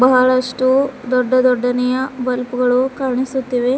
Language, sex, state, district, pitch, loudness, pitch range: Kannada, female, Karnataka, Bidar, 255 Hz, -17 LUFS, 250-260 Hz